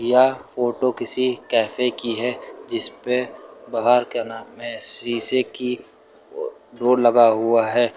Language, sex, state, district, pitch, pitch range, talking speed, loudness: Hindi, male, Uttar Pradesh, Lucknow, 125 Hz, 115-130 Hz, 130 wpm, -18 LUFS